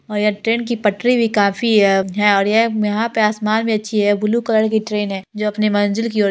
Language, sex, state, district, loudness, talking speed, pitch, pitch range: Hindi, female, Bihar, Muzaffarpur, -17 LUFS, 245 wpm, 215 Hz, 205-225 Hz